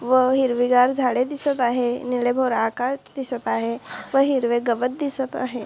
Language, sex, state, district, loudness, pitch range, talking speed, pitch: Marathi, female, Maharashtra, Chandrapur, -22 LUFS, 245-265 Hz, 160 wpm, 250 Hz